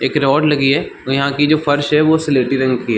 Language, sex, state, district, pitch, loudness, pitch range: Hindi, male, Chhattisgarh, Balrampur, 140 Hz, -15 LUFS, 135-150 Hz